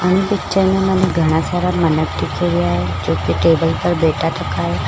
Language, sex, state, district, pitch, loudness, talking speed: Marwari, female, Rajasthan, Churu, 160 Hz, -17 LUFS, 185 wpm